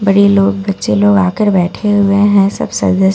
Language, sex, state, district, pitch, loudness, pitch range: Hindi, female, Bihar, Katihar, 200 Hz, -11 LUFS, 190-205 Hz